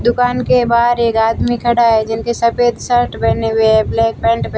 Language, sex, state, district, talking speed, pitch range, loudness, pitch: Hindi, female, Rajasthan, Barmer, 195 wpm, 225-240 Hz, -14 LUFS, 235 Hz